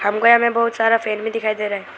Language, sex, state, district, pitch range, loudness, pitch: Hindi, male, Arunachal Pradesh, Lower Dibang Valley, 210-230 Hz, -17 LUFS, 225 Hz